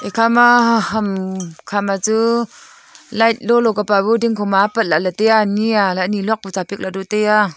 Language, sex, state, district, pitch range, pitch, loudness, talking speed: Wancho, female, Arunachal Pradesh, Longding, 195-230 Hz, 210 Hz, -16 LUFS, 180 wpm